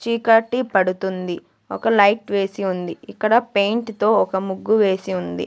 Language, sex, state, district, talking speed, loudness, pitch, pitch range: Telugu, female, Andhra Pradesh, Sri Satya Sai, 145 wpm, -19 LUFS, 200 Hz, 190-225 Hz